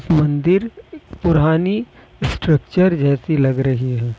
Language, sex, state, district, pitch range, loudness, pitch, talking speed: Hindi, male, Bihar, Kishanganj, 135-185 Hz, -17 LUFS, 155 Hz, 100 wpm